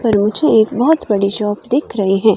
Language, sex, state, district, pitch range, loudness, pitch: Hindi, female, Himachal Pradesh, Shimla, 205-245 Hz, -15 LUFS, 215 Hz